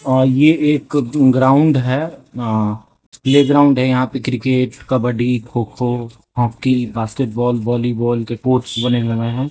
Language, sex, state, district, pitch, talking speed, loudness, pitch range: Hindi, male, Rajasthan, Jaipur, 125 Hz, 140 wpm, -16 LUFS, 120-130 Hz